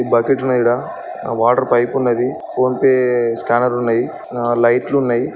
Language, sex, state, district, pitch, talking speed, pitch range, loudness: Telugu, male, Andhra Pradesh, Chittoor, 120 Hz, 145 wpm, 120-130 Hz, -16 LUFS